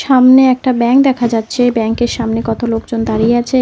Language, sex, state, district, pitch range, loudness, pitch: Bengali, female, West Bengal, Cooch Behar, 225-255 Hz, -12 LUFS, 240 Hz